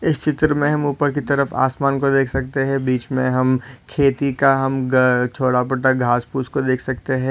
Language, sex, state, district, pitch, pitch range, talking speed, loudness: Hindi, male, Maharashtra, Solapur, 135 Hz, 130-140 Hz, 220 wpm, -19 LUFS